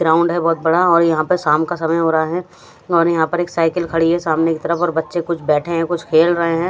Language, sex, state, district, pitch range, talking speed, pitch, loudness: Hindi, female, Punjab, Fazilka, 160-170 Hz, 285 wpm, 165 Hz, -16 LUFS